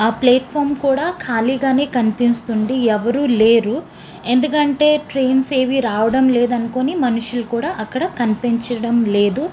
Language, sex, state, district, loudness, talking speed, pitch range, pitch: Telugu, female, Andhra Pradesh, Srikakulam, -17 LUFS, 115 wpm, 230-270 Hz, 245 Hz